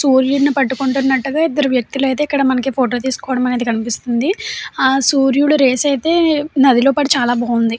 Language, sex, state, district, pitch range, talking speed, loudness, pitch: Telugu, female, Andhra Pradesh, Chittoor, 255-285 Hz, 140 wpm, -15 LUFS, 270 Hz